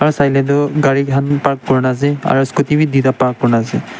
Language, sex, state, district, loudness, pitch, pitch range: Nagamese, male, Nagaland, Dimapur, -14 LUFS, 140 Hz, 130-145 Hz